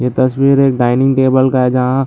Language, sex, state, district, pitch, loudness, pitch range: Hindi, male, Bihar, Lakhisarai, 130 Hz, -12 LUFS, 125-135 Hz